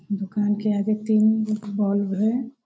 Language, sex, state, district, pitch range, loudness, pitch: Hindi, female, Bihar, Muzaffarpur, 205-215 Hz, -23 LUFS, 210 Hz